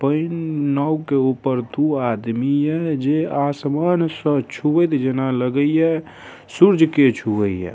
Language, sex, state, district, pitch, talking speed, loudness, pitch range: Maithili, male, Bihar, Darbhanga, 145 Hz, 140 wpm, -19 LUFS, 130-155 Hz